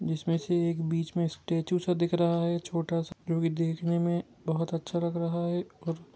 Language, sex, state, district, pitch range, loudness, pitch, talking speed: Hindi, male, Jharkhand, Jamtara, 165-170 Hz, -30 LUFS, 170 Hz, 205 wpm